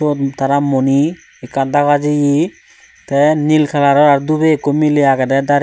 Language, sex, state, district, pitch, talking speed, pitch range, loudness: Chakma, male, Tripura, Unakoti, 145 Hz, 160 wpm, 140-150 Hz, -14 LUFS